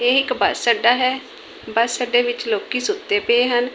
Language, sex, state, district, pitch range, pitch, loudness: Punjabi, female, Punjab, Kapurthala, 240-275 Hz, 250 Hz, -19 LUFS